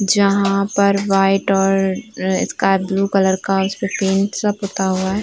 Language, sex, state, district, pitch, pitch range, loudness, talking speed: Hindi, female, Uttar Pradesh, Varanasi, 195 Hz, 195-200 Hz, -17 LUFS, 160 wpm